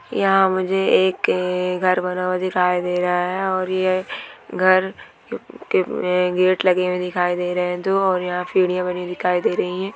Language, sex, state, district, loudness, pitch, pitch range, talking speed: Hindi, female, Bihar, Gopalganj, -20 LUFS, 180 Hz, 180-185 Hz, 185 wpm